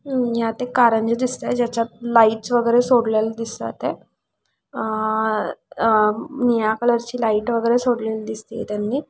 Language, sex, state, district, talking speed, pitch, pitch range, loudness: Marathi, female, Maharashtra, Aurangabad, 130 wpm, 230 Hz, 220-240 Hz, -20 LUFS